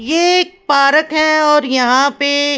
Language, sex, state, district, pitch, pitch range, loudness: Hindi, female, Punjab, Pathankot, 295 Hz, 280-310 Hz, -12 LUFS